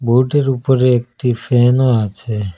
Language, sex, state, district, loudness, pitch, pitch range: Bengali, male, Assam, Hailakandi, -15 LUFS, 125 Hz, 115-130 Hz